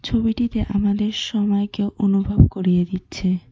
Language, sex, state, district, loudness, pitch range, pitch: Bengali, female, West Bengal, Cooch Behar, -20 LUFS, 185-210 Hz, 205 Hz